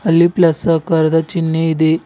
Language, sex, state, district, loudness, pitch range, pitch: Kannada, male, Karnataka, Bidar, -14 LUFS, 160-170 Hz, 165 Hz